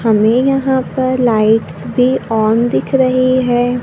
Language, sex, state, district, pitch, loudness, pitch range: Hindi, female, Maharashtra, Gondia, 245 Hz, -13 LUFS, 225-255 Hz